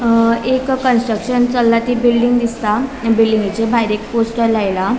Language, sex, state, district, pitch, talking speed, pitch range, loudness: Konkani, female, Goa, North and South Goa, 230 Hz, 130 wpm, 225-245 Hz, -15 LUFS